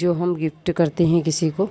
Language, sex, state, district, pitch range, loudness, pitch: Hindi, female, Bihar, Purnia, 160-175 Hz, -21 LUFS, 170 Hz